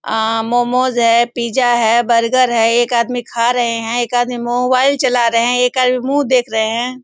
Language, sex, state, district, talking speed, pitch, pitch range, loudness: Hindi, female, Bihar, Sitamarhi, 205 wpm, 240 Hz, 235-250 Hz, -14 LUFS